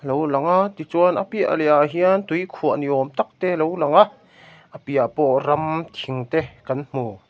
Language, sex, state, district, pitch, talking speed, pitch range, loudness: Mizo, male, Mizoram, Aizawl, 150 Hz, 205 wpm, 130-170 Hz, -20 LUFS